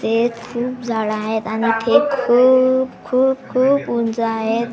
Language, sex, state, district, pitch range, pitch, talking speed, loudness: Marathi, female, Maharashtra, Washim, 225-255 Hz, 235 Hz, 140 wpm, -17 LUFS